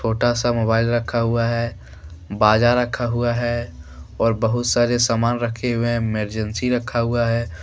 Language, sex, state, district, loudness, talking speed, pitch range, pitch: Hindi, male, Jharkhand, Deoghar, -20 LUFS, 165 wpm, 110-120 Hz, 115 Hz